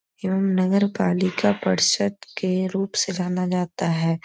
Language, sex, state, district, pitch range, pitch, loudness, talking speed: Hindi, female, Uttar Pradesh, Etah, 165-190 Hz, 185 Hz, -22 LUFS, 140 wpm